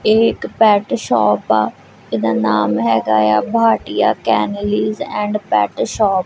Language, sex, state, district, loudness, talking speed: Punjabi, female, Punjab, Kapurthala, -16 LUFS, 155 wpm